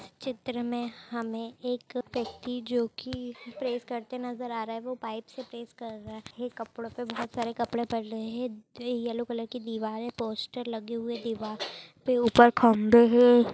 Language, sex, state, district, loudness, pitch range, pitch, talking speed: Hindi, female, Maharashtra, Dhule, -29 LUFS, 230-245 Hz, 235 Hz, 185 wpm